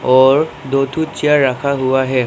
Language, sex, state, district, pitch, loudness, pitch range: Hindi, male, Arunachal Pradesh, Longding, 135 Hz, -15 LUFS, 130-145 Hz